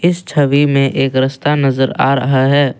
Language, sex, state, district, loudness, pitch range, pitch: Hindi, male, Assam, Kamrup Metropolitan, -13 LUFS, 135-145 Hz, 135 Hz